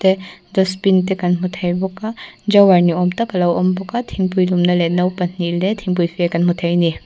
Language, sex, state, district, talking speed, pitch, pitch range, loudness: Mizo, female, Mizoram, Aizawl, 255 wpm, 180 Hz, 175-190 Hz, -17 LUFS